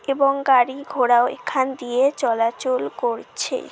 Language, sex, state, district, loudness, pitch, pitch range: Bengali, male, West Bengal, Malda, -20 LUFS, 260 Hz, 240-275 Hz